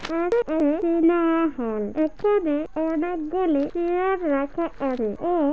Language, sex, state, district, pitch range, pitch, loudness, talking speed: Bengali, female, West Bengal, Malda, 295-345 Hz, 325 Hz, -23 LUFS, 65 wpm